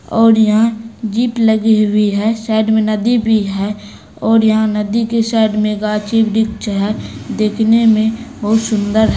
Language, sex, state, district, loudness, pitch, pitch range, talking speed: Hindi, female, Bihar, Supaul, -14 LUFS, 220 Hz, 215-225 Hz, 165 wpm